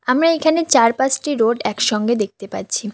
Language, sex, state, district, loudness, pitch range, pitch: Bengali, female, West Bengal, Cooch Behar, -17 LUFS, 220-295 Hz, 245 Hz